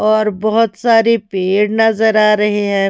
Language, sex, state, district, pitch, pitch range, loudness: Hindi, female, Himachal Pradesh, Shimla, 215 Hz, 205-225 Hz, -13 LUFS